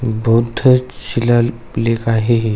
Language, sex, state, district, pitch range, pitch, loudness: Marathi, male, Maharashtra, Aurangabad, 115-120 Hz, 115 Hz, -15 LUFS